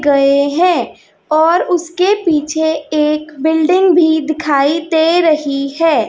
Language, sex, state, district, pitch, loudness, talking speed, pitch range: Hindi, female, Chhattisgarh, Raipur, 315 Hz, -13 LUFS, 120 wpm, 300-335 Hz